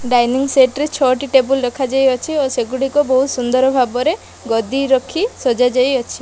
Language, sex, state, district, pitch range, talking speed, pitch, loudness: Odia, female, Odisha, Malkangiri, 250-270 Hz, 155 wpm, 260 Hz, -16 LUFS